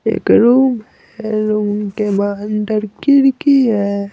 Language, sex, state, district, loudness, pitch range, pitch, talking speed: Hindi, male, Bihar, Patna, -14 LUFS, 205-245 Hz, 215 Hz, 130 wpm